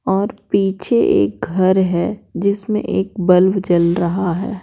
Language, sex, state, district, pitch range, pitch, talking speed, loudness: Hindi, female, Bihar, Patna, 175-200 Hz, 190 Hz, 140 wpm, -17 LUFS